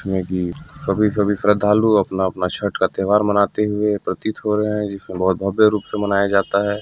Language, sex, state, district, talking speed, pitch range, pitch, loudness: Hindi, male, Chhattisgarh, Sarguja, 195 wpm, 95-105 Hz, 100 Hz, -19 LUFS